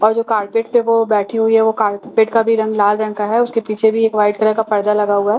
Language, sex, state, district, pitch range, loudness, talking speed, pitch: Hindi, female, Bihar, Katihar, 210-225 Hz, -15 LUFS, 335 wpm, 220 Hz